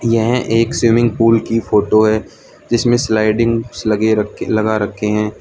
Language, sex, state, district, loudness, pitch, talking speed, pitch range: Hindi, male, Arunachal Pradesh, Lower Dibang Valley, -15 LUFS, 110 Hz, 155 wpm, 110-115 Hz